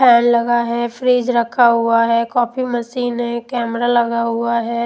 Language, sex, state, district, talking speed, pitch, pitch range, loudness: Hindi, female, Odisha, Malkangiri, 170 wpm, 235 Hz, 235-245 Hz, -16 LUFS